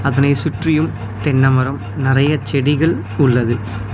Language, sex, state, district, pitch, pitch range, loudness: Tamil, male, Tamil Nadu, Nilgiris, 135 Hz, 115-145 Hz, -16 LUFS